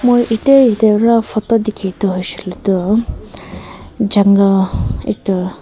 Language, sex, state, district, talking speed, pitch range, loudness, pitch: Nagamese, female, Nagaland, Kohima, 115 wpm, 185-225 Hz, -14 LUFS, 200 Hz